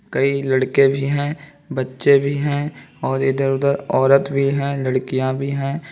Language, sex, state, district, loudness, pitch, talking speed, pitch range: Hindi, male, Uttar Pradesh, Lalitpur, -19 LUFS, 140 Hz, 160 wpm, 135-140 Hz